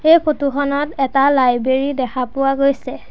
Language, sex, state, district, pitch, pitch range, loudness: Assamese, male, Assam, Sonitpur, 275 Hz, 260-285 Hz, -17 LUFS